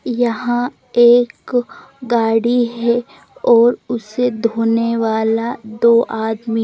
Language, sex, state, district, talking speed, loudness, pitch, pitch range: Hindi, female, Chandigarh, Chandigarh, 90 wpm, -16 LUFS, 235 Hz, 225-245 Hz